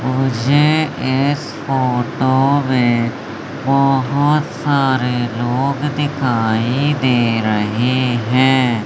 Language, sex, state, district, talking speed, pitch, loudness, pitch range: Hindi, male, Madhya Pradesh, Umaria, 75 wpm, 130 Hz, -16 LUFS, 120-140 Hz